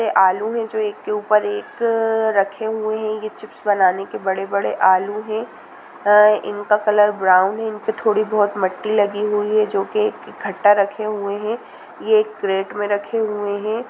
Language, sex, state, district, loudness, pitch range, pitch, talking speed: Hindi, female, Bihar, Bhagalpur, -19 LUFS, 200-220 Hz, 210 Hz, 180 wpm